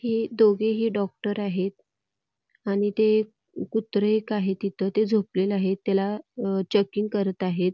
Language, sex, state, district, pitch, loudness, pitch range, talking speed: Marathi, female, Karnataka, Belgaum, 205 Hz, -25 LUFS, 195-215 Hz, 130 wpm